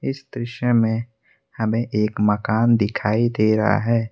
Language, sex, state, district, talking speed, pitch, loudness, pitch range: Hindi, male, Assam, Kamrup Metropolitan, 145 wpm, 115 Hz, -20 LUFS, 110-120 Hz